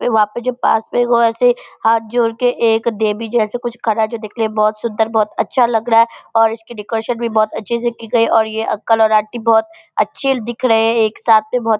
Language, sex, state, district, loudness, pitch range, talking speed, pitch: Hindi, female, Bihar, Purnia, -16 LUFS, 220-240 Hz, 255 wpm, 230 Hz